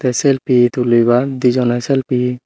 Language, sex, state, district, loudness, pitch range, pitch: Chakma, male, Tripura, Unakoti, -14 LUFS, 120-130 Hz, 125 Hz